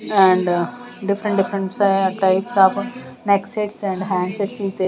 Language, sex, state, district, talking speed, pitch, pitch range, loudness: English, female, Punjab, Kapurthala, 135 wpm, 195 Hz, 190-205 Hz, -19 LUFS